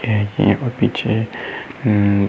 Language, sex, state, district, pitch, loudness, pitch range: Hindi, male, Uttar Pradesh, Muzaffarnagar, 110 Hz, -19 LUFS, 100-115 Hz